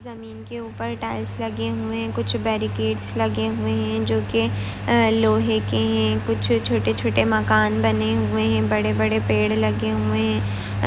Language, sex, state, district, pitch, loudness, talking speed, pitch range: Hindi, female, Maharashtra, Pune, 110 Hz, -21 LUFS, 170 wpm, 110-115 Hz